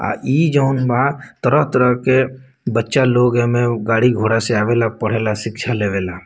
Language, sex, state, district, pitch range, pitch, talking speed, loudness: Bhojpuri, male, Bihar, Muzaffarpur, 115-130 Hz, 120 Hz, 170 wpm, -17 LUFS